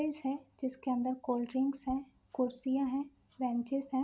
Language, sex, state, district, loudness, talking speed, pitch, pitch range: Hindi, female, Bihar, Sitamarhi, -36 LUFS, 165 wpm, 265 Hz, 255-275 Hz